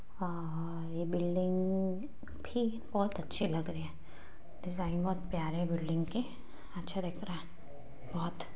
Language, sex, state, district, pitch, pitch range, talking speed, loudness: Hindi, female, Bihar, Muzaffarpur, 175 Hz, 165-185 Hz, 140 wpm, -37 LUFS